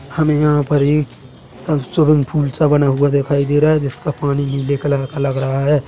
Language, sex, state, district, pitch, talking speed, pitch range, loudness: Hindi, male, Chhattisgarh, Bilaspur, 145 Hz, 215 wpm, 140-150 Hz, -16 LUFS